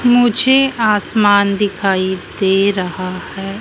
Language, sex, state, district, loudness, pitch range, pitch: Hindi, female, Madhya Pradesh, Dhar, -14 LUFS, 190-220 Hz, 200 Hz